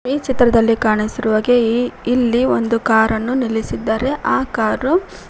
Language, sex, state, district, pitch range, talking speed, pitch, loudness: Kannada, female, Karnataka, Koppal, 220-255 Hz, 100 wpm, 235 Hz, -16 LUFS